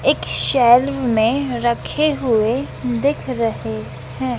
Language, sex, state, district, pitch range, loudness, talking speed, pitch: Hindi, female, Madhya Pradesh, Dhar, 215-265 Hz, -18 LUFS, 110 wpm, 240 Hz